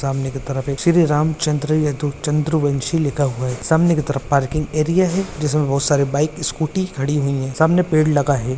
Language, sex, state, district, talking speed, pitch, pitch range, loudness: Hindi, male, Jharkhand, Jamtara, 205 wpm, 150 Hz, 140-155 Hz, -19 LUFS